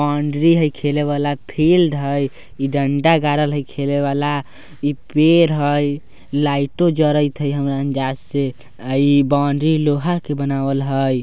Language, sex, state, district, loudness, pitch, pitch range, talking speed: Bajjika, male, Bihar, Vaishali, -18 LUFS, 145 Hz, 140-150 Hz, 150 wpm